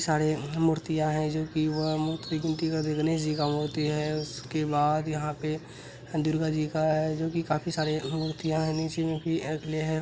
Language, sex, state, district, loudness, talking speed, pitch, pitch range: Maithili, male, Bihar, Araria, -29 LUFS, 180 wpm, 155 Hz, 155-160 Hz